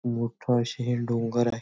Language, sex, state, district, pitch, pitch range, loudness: Marathi, male, Maharashtra, Nagpur, 120 Hz, 115-120 Hz, -27 LUFS